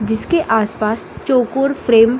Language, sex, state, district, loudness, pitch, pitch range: Hindi, female, Bihar, Samastipur, -16 LUFS, 230 Hz, 220-270 Hz